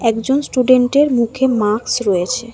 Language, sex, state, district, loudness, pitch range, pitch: Bengali, female, West Bengal, Alipurduar, -15 LUFS, 225-260 Hz, 245 Hz